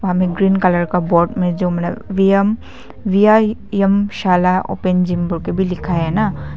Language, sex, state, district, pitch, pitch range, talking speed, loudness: Hindi, female, Arunachal Pradesh, Papum Pare, 185 Hz, 175-200 Hz, 145 wpm, -16 LUFS